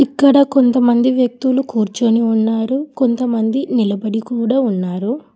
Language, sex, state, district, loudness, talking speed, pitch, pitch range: Telugu, female, Telangana, Hyderabad, -15 LUFS, 100 wpm, 240 Hz, 225-265 Hz